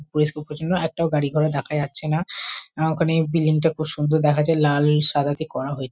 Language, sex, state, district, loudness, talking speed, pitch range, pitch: Bengali, female, West Bengal, Kolkata, -22 LUFS, 215 wpm, 150-160 Hz, 150 Hz